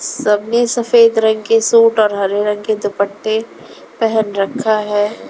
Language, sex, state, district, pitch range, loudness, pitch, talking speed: Hindi, female, Uttar Pradesh, Lalitpur, 205-230 Hz, -14 LUFS, 220 Hz, 145 wpm